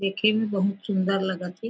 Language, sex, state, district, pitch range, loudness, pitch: Chhattisgarhi, female, Chhattisgarh, Raigarh, 190-215 Hz, -25 LUFS, 195 Hz